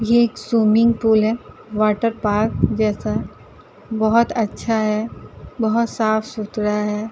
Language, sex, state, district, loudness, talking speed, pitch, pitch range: Hindi, female, Uttar Pradesh, Jalaun, -19 LUFS, 120 wpm, 220 Hz, 215-230 Hz